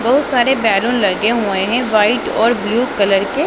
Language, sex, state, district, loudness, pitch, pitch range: Hindi, female, Punjab, Pathankot, -15 LUFS, 230 Hz, 205-245 Hz